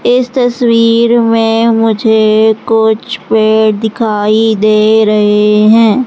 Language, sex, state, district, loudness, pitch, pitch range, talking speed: Hindi, male, Madhya Pradesh, Katni, -9 LUFS, 220 Hz, 215-230 Hz, 100 wpm